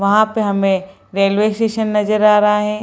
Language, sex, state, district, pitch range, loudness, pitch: Hindi, female, Bihar, Samastipur, 200-215 Hz, -15 LUFS, 210 Hz